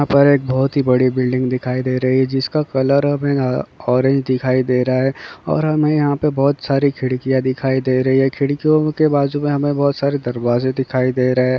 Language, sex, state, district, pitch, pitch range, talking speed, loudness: Hindi, male, Bihar, Kishanganj, 135 Hz, 130-140 Hz, 215 wpm, -17 LUFS